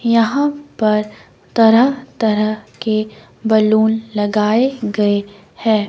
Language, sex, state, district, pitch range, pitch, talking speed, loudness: Hindi, female, Himachal Pradesh, Shimla, 210-230 Hz, 220 Hz, 90 wpm, -16 LUFS